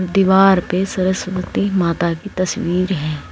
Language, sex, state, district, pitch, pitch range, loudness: Hindi, female, Uttar Pradesh, Saharanpur, 185 Hz, 180-195 Hz, -17 LUFS